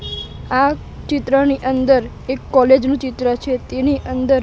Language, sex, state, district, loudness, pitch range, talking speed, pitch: Gujarati, male, Gujarat, Gandhinagar, -17 LUFS, 255-275 Hz, 135 wpm, 260 Hz